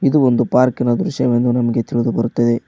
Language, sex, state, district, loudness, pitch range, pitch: Kannada, male, Karnataka, Koppal, -16 LUFS, 120-125 Hz, 120 Hz